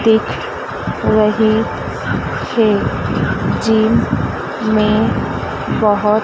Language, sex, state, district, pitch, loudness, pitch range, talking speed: Hindi, female, Madhya Pradesh, Dhar, 220 Hz, -16 LUFS, 215-220 Hz, 60 wpm